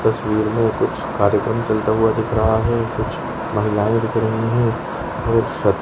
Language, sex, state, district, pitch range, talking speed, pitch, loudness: Hindi, male, West Bengal, Kolkata, 110-115 Hz, 165 wpm, 110 Hz, -19 LUFS